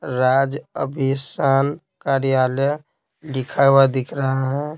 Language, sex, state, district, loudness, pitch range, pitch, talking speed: Hindi, male, Bihar, Patna, -20 LUFS, 135-140 Hz, 135 Hz, 100 wpm